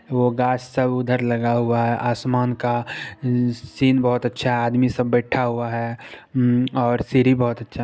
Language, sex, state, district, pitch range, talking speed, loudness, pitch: Hindi, male, Bihar, Saharsa, 120-125 Hz, 170 wpm, -21 LUFS, 125 Hz